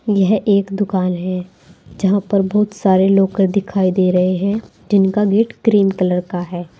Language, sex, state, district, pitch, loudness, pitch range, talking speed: Hindi, female, Uttar Pradesh, Saharanpur, 195 Hz, -16 LUFS, 185-205 Hz, 165 wpm